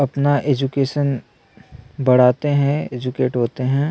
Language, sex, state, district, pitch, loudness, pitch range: Hindi, male, Chhattisgarh, Sukma, 135 Hz, -19 LUFS, 125-140 Hz